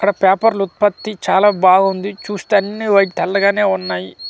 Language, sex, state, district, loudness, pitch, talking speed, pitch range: Telugu, male, Andhra Pradesh, Manyam, -15 LUFS, 200 Hz, 155 wpm, 190-205 Hz